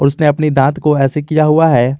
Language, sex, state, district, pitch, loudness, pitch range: Hindi, male, Jharkhand, Garhwa, 150 Hz, -12 LUFS, 140-155 Hz